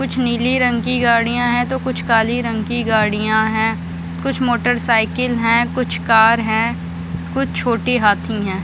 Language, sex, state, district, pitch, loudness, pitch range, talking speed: Hindi, female, Bihar, Samastipur, 225 Hz, -17 LUFS, 195-240 Hz, 160 wpm